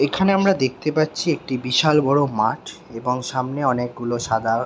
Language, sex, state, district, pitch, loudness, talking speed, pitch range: Bengali, male, West Bengal, Jhargram, 130 Hz, -20 LUFS, 155 wpm, 125-155 Hz